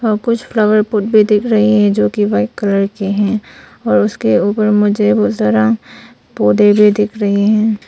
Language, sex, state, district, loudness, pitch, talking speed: Hindi, female, Arunachal Pradesh, Papum Pare, -13 LUFS, 205 Hz, 190 wpm